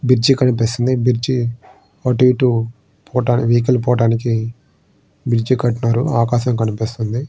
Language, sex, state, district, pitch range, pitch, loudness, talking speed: Telugu, male, Andhra Pradesh, Srikakulam, 115-125 Hz, 120 Hz, -17 LUFS, 100 wpm